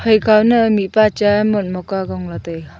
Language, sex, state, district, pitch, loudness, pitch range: Wancho, female, Arunachal Pradesh, Longding, 205 Hz, -15 LUFS, 180-215 Hz